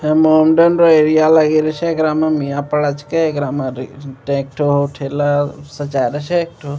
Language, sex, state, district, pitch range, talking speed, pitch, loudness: Maithili, male, Bihar, Begusarai, 140-155 Hz, 195 wpm, 150 Hz, -15 LUFS